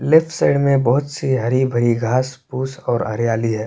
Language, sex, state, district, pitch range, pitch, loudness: Hindi, male, Chhattisgarh, Korba, 120-140 Hz, 130 Hz, -18 LUFS